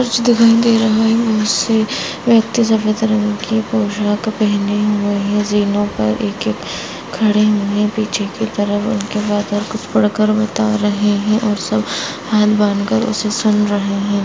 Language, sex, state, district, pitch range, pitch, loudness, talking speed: Hindi, female, Chhattisgarh, Sarguja, 205-220 Hz, 210 Hz, -16 LUFS, 175 wpm